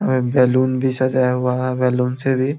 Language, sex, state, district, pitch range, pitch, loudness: Hindi, male, Bihar, Samastipur, 125-130 Hz, 130 Hz, -18 LUFS